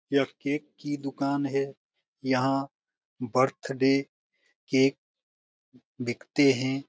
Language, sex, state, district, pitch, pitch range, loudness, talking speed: Hindi, male, Bihar, Jamui, 135 Hz, 130-140 Hz, -28 LUFS, 85 wpm